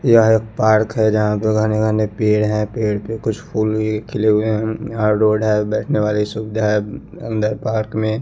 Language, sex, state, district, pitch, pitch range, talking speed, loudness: Hindi, male, Chandigarh, Chandigarh, 110 Hz, 105-110 Hz, 205 wpm, -18 LUFS